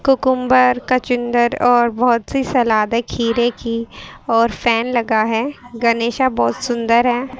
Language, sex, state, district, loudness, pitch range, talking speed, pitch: Hindi, female, Haryana, Charkhi Dadri, -17 LUFS, 230-250 Hz, 140 wpm, 240 Hz